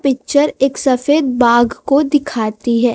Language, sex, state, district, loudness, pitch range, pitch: Hindi, female, Chhattisgarh, Raipur, -14 LUFS, 240-290 Hz, 260 Hz